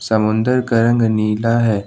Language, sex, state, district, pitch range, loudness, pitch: Hindi, male, Jharkhand, Ranchi, 110-120 Hz, -16 LUFS, 115 Hz